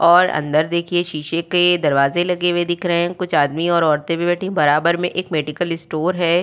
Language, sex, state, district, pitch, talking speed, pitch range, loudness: Hindi, female, Uttar Pradesh, Budaun, 170 Hz, 225 wpm, 155-175 Hz, -18 LUFS